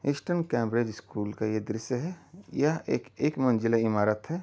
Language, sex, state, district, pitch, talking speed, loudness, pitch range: Hindi, male, Uttar Pradesh, Deoria, 120 Hz, 175 wpm, -29 LUFS, 110-150 Hz